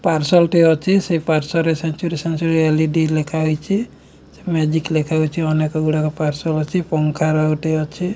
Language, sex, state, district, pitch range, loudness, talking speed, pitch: Odia, male, Odisha, Nuapada, 155-165 Hz, -18 LUFS, 140 wpm, 160 Hz